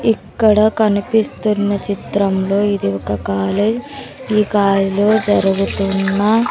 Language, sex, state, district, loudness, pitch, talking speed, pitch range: Telugu, female, Andhra Pradesh, Sri Satya Sai, -16 LUFS, 205 Hz, 90 wpm, 195-215 Hz